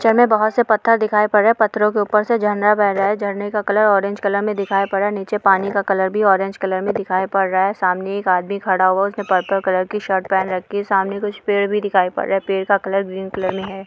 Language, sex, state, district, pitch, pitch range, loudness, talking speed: Hindi, female, Jharkhand, Sahebganj, 200 Hz, 190-210 Hz, -18 LUFS, 295 wpm